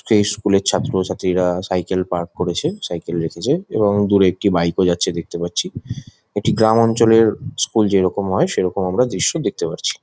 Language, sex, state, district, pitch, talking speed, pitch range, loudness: Bengali, male, West Bengal, Jhargram, 95 Hz, 160 wpm, 90-105 Hz, -18 LUFS